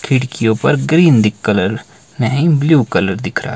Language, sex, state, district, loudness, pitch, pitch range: Hindi, male, Himachal Pradesh, Shimla, -14 LUFS, 140 Hz, 120-155 Hz